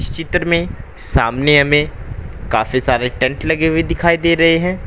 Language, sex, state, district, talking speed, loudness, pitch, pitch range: Hindi, male, Uttar Pradesh, Saharanpur, 175 wpm, -15 LUFS, 150 Hz, 125-165 Hz